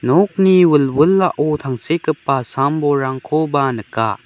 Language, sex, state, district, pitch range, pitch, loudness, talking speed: Garo, male, Meghalaya, West Garo Hills, 130-160 Hz, 145 Hz, -16 LUFS, 70 wpm